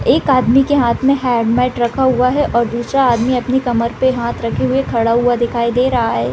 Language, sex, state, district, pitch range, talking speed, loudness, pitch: Hindi, female, Bihar, Gopalganj, 235-260 Hz, 235 wpm, -15 LUFS, 245 Hz